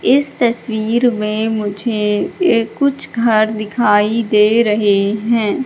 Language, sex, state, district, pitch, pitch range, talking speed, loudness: Hindi, female, Madhya Pradesh, Katni, 220 Hz, 210-235 Hz, 115 wpm, -15 LUFS